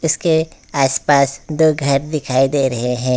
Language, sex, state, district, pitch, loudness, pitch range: Hindi, male, West Bengal, Alipurduar, 140 Hz, -16 LUFS, 135-155 Hz